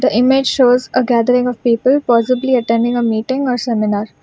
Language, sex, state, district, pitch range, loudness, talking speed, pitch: English, female, Karnataka, Bangalore, 230-255 Hz, -14 LUFS, 185 wpm, 245 Hz